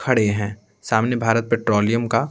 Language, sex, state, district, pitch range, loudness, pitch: Hindi, male, Bihar, Patna, 105-115 Hz, -20 LUFS, 115 Hz